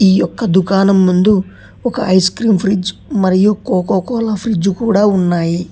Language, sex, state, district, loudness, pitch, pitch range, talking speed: Telugu, male, Telangana, Hyderabad, -14 LUFS, 195 Hz, 185-210 Hz, 135 wpm